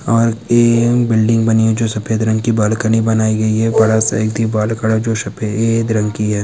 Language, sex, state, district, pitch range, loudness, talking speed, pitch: Hindi, male, Bihar, Araria, 110-115 Hz, -15 LUFS, 225 wpm, 110 Hz